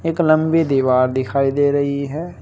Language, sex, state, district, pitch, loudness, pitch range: Hindi, male, Uttar Pradesh, Saharanpur, 145 Hz, -17 LUFS, 135-160 Hz